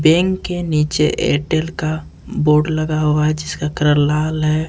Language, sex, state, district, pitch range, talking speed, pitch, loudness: Hindi, male, Jharkhand, Ranchi, 150-160 Hz, 165 wpm, 155 Hz, -17 LUFS